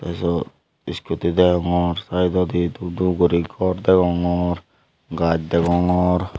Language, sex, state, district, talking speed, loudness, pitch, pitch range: Chakma, male, Tripura, Unakoti, 105 wpm, -20 LUFS, 90 Hz, 85-90 Hz